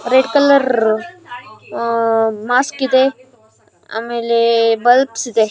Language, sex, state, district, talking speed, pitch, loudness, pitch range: Kannada, female, Karnataka, Gulbarga, 75 wpm, 235 Hz, -15 LUFS, 225-260 Hz